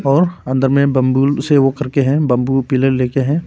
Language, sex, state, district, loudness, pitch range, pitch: Hindi, male, Arunachal Pradesh, Papum Pare, -15 LUFS, 130-145 Hz, 135 Hz